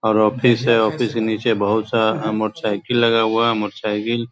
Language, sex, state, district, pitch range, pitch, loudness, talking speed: Hindi, male, Bihar, Begusarai, 110-115 Hz, 110 Hz, -18 LUFS, 210 wpm